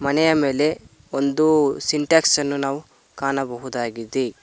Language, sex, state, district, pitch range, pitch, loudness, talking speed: Kannada, male, Karnataka, Koppal, 135-150 Hz, 140 Hz, -20 LUFS, 95 wpm